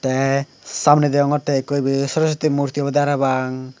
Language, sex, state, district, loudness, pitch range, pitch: Chakma, male, Tripura, Unakoti, -19 LUFS, 135-145 Hz, 140 Hz